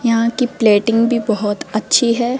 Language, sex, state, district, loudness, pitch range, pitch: Hindi, female, Rajasthan, Jaipur, -15 LUFS, 215-235 Hz, 230 Hz